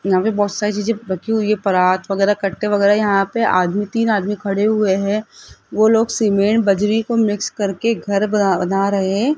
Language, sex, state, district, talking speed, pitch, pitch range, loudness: Hindi, female, Rajasthan, Jaipur, 200 wpm, 205 Hz, 195-215 Hz, -17 LUFS